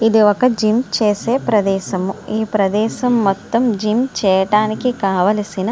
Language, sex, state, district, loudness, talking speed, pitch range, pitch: Telugu, female, Andhra Pradesh, Srikakulam, -16 LUFS, 115 wpm, 200-230 Hz, 215 Hz